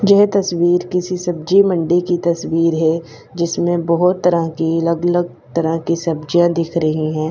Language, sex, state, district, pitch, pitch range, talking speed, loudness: Hindi, female, Haryana, Charkhi Dadri, 170 Hz, 165-175 Hz, 165 wpm, -17 LUFS